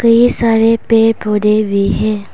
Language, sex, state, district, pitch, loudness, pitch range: Hindi, female, Arunachal Pradesh, Papum Pare, 225 Hz, -12 LUFS, 210-230 Hz